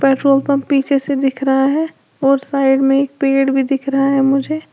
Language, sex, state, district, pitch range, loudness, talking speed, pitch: Hindi, female, Uttar Pradesh, Lalitpur, 270-275 Hz, -15 LUFS, 215 wpm, 275 Hz